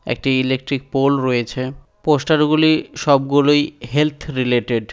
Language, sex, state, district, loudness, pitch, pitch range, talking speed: Bengali, male, West Bengal, Dakshin Dinajpur, -18 LUFS, 140 Hz, 130-150 Hz, 120 wpm